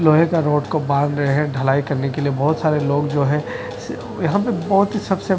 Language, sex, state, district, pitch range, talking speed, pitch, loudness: Hindi, male, Odisha, Nuapada, 145-170 Hz, 245 wpm, 150 Hz, -19 LUFS